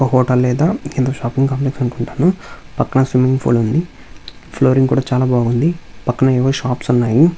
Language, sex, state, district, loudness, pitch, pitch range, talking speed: Telugu, male, Andhra Pradesh, Visakhapatnam, -16 LUFS, 130 Hz, 125-140 Hz, 145 wpm